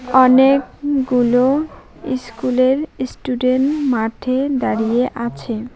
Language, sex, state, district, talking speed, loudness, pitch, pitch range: Bengali, female, West Bengal, Alipurduar, 65 wpm, -17 LUFS, 255 Hz, 245-270 Hz